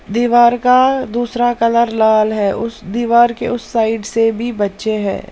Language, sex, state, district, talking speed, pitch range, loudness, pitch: Hindi, female, Punjab, Pathankot, 170 wpm, 220-240 Hz, -15 LUFS, 230 Hz